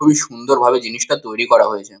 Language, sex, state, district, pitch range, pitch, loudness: Bengali, male, West Bengal, Kolkata, 115-140 Hz, 120 Hz, -16 LUFS